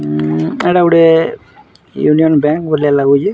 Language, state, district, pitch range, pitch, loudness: Sambalpuri, Odisha, Sambalpur, 140-165 Hz, 150 Hz, -12 LUFS